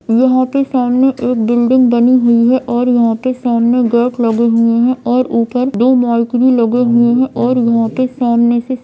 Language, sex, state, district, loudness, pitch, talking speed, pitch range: Hindi, female, Jharkhand, Jamtara, -12 LUFS, 245 Hz, 190 wpm, 235-255 Hz